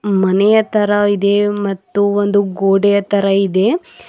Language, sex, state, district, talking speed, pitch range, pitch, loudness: Kannada, female, Karnataka, Bidar, 115 wpm, 195-205 Hz, 200 Hz, -14 LUFS